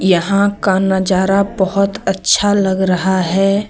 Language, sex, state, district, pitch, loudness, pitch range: Hindi, female, Jharkhand, Deoghar, 195 Hz, -14 LUFS, 190-200 Hz